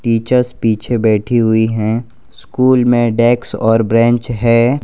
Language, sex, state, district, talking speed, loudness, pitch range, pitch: Hindi, male, Gujarat, Valsad, 135 wpm, -13 LUFS, 110-120 Hz, 115 Hz